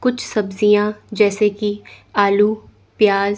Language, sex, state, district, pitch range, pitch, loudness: Hindi, female, Chandigarh, Chandigarh, 205-215 Hz, 210 Hz, -17 LUFS